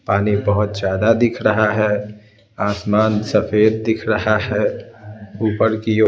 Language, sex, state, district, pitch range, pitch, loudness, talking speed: Hindi, male, Bihar, Patna, 105-110 Hz, 105 Hz, -18 LUFS, 140 wpm